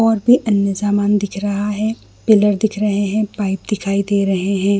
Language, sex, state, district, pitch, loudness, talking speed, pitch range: Hindi, female, Chhattisgarh, Bilaspur, 205 Hz, -17 LUFS, 200 wpm, 200-215 Hz